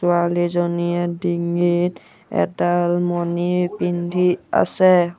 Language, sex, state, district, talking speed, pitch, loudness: Assamese, male, Assam, Sonitpur, 70 wpm, 175 Hz, -20 LUFS